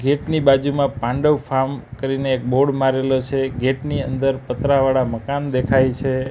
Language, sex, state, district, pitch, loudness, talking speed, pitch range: Gujarati, male, Gujarat, Gandhinagar, 135 Hz, -19 LUFS, 160 wpm, 130-140 Hz